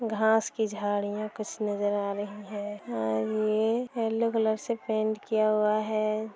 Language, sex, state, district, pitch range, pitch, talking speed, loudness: Hindi, male, Bihar, Sitamarhi, 205-220 Hz, 215 Hz, 160 wpm, -29 LUFS